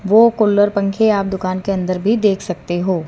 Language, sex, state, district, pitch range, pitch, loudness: Hindi, female, Haryana, Rohtak, 185-210 Hz, 195 Hz, -16 LUFS